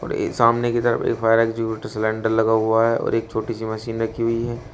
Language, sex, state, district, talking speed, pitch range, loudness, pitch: Hindi, male, Uttar Pradesh, Shamli, 255 wpm, 110-115 Hz, -21 LUFS, 115 Hz